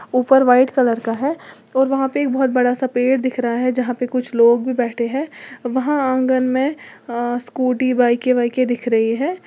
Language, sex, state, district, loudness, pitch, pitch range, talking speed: Hindi, female, Uttar Pradesh, Lalitpur, -18 LUFS, 255 Hz, 245-265 Hz, 210 wpm